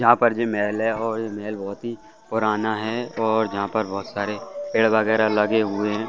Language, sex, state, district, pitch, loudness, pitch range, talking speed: Hindi, male, Chhattisgarh, Bastar, 110 Hz, -23 LUFS, 105-115 Hz, 205 wpm